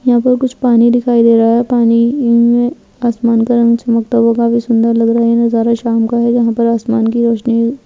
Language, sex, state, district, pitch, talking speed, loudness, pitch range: Hindi, female, Bihar, Saharsa, 235 Hz, 235 wpm, -12 LUFS, 230-240 Hz